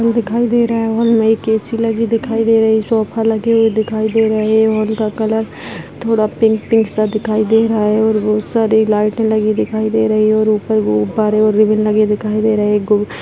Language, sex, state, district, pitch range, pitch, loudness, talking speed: Hindi, female, Chhattisgarh, Kabirdham, 215-225 Hz, 220 Hz, -14 LUFS, 235 wpm